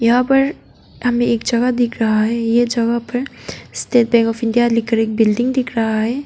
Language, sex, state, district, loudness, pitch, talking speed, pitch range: Hindi, female, Arunachal Pradesh, Papum Pare, -17 LUFS, 235 Hz, 200 wpm, 230-245 Hz